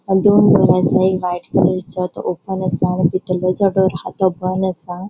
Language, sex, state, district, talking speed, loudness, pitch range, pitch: Konkani, female, Goa, North and South Goa, 155 wpm, -16 LUFS, 180-190 Hz, 185 Hz